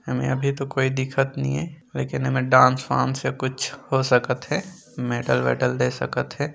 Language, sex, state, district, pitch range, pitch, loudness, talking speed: Hindi, male, Chhattisgarh, Korba, 125-140 Hz, 130 Hz, -23 LUFS, 175 wpm